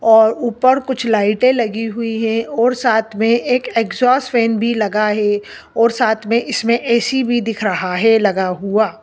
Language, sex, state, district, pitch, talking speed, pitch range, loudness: Hindi, female, Andhra Pradesh, Anantapur, 225 Hz, 175 wpm, 220-240 Hz, -16 LUFS